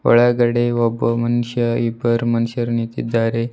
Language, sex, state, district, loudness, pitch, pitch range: Kannada, male, Karnataka, Bidar, -18 LUFS, 120 Hz, 115-120 Hz